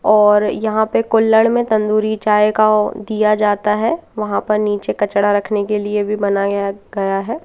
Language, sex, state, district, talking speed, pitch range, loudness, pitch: Hindi, female, Madhya Pradesh, Katni, 175 wpm, 205-215 Hz, -16 LUFS, 210 Hz